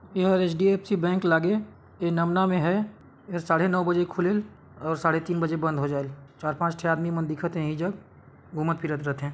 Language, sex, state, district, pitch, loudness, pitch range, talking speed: Chhattisgarhi, male, Chhattisgarh, Sarguja, 170 Hz, -26 LUFS, 160-185 Hz, 210 wpm